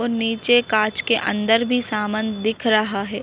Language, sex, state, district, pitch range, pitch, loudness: Hindi, female, Madhya Pradesh, Bhopal, 215-230 Hz, 220 Hz, -18 LUFS